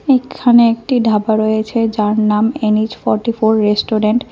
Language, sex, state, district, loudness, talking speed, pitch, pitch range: Bengali, female, Tripura, West Tripura, -14 LUFS, 150 wpm, 220 Hz, 215-235 Hz